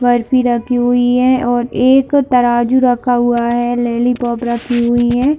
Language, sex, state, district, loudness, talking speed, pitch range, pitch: Hindi, female, Jharkhand, Sahebganj, -13 LUFS, 180 wpm, 240-250 Hz, 245 Hz